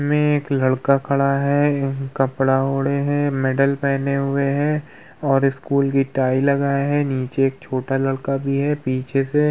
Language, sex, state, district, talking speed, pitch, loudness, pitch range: Hindi, male, Uttar Pradesh, Hamirpur, 175 wpm, 140 Hz, -20 LUFS, 135-140 Hz